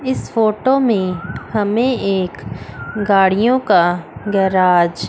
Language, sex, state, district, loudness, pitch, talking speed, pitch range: Hindi, female, Chandigarh, Chandigarh, -16 LUFS, 200 Hz, 105 wpm, 185-230 Hz